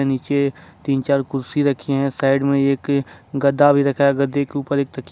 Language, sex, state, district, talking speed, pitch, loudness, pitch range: Hindi, male, Jharkhand, Ranchi, 210 wpm, 140 Hz, -19 LUFS, 135-140 Hz